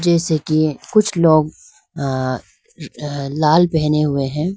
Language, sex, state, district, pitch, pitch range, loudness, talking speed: Hindi, female, Arunachal Pradesh, Lower Dibang Valley, 155 Hz, 140-170 Hz, -17 LUFS, 120 wpm